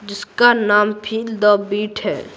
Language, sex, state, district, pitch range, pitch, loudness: Hindi, female, Bihar, Patna, 205-220 Hz, 210 Hz, -16 LUFS